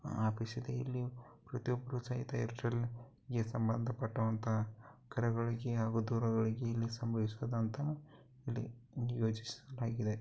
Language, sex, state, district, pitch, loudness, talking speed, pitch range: Kannada, male, Karnataka, Bellary, 115 Hz, -38 LUFS, 100 wpm, 115-125 Hz